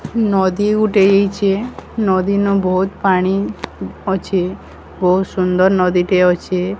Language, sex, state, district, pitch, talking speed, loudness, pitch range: Odia, male, Odisha, Sambalpur, 190 Hz, 105 wpm, -16 LUFS, 185-200 Hz